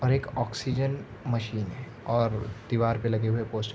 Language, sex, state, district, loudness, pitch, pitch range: Hindi, male, Maharashtra, Aurangabad, -29 LUFS, 115 Hz, 110-125 Hz